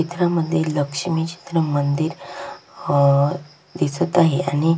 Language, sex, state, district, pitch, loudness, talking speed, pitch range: Marathi, female, Maharashtra, Sindhudurg, 160 Hz, -20 LUFS, 100 wpm, 145-170 Hz